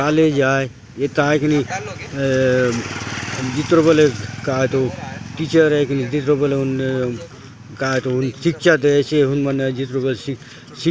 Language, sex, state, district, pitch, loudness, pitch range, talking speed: Halbi, male, Chhattisgarh, Bastar, 135 Hz, -18 LUFS, 125-145 Hz, 155 wpm